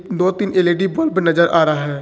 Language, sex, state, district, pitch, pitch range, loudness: Hindi, male, Jharkhand, Ranchi, 175 Hz, 160-185 Hz, -16 LUFS